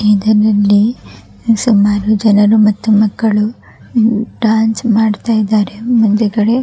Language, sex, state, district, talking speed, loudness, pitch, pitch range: Kannada, female, Karnataka, Raichur, 90 wpm, -12 LUFS, 215 Hz, 210-225 Hz